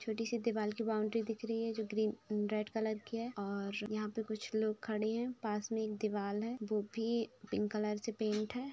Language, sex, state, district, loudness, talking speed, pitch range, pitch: Hindi, female, Uttar Pradesh, Etah, -38 LUFS, 220 wpm, 210-225 Hz, 215 Hz